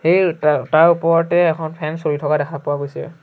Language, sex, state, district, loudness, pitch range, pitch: Assamese, male, Assam, Sonitpur, -17 LUFS, 150-165 Hz, 160 Hz